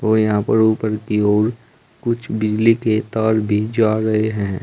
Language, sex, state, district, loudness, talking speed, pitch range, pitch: Hindi, male, Uttar Pradesh, Saharanpur, -18 LUFS, 180 wpm, 105-110 Hz, 110 Hz